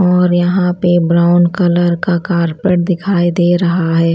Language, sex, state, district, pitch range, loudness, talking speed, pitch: Hindi, female, Odisha, Malkangiri, 170-180 Hz, -13 LUFS, 160 wpm, 175 Hz